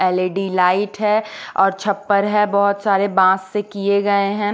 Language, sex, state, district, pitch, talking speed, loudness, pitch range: Hindi, female, Odisha, Khordha, 200 Hz, 170 wpm, -18 LUFS, 195-205 Hz